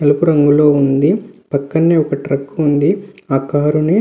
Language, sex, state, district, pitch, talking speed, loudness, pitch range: Telugu, male, Andhra Pradesh, Visakhapatnam, 145 Hz, 165 wpm, -14 LUFS, 140-160 Hz